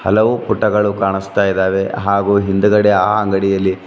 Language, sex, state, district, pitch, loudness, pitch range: Kannada, male, Karnataka, Bidar, 100 Hz, -15 LUFS, 95-105 Hz